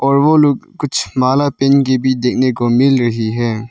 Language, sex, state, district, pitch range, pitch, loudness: Hindi, male, Arunachal Pradesh, Lower Dibang Valley, 120-140 Hz, 130 Hz, -14 LUFS